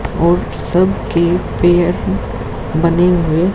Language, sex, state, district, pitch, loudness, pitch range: Hindi, male, Haryana, Jhajjar, 170 Hz, -15 LUFS, 155-175 Hz